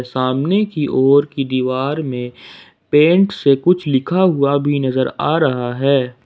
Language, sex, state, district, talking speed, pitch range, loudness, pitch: Hindi, male, Jharkhand, Ranchi, 155 wpm, 130-150 Hz, -16 LUFS, 140 Hz